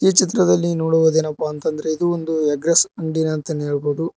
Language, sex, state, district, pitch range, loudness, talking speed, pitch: Kannada, male, Karnataka, Koppal, 150-165 Hz, -19 LUFS, 160 wpm, 160 Hz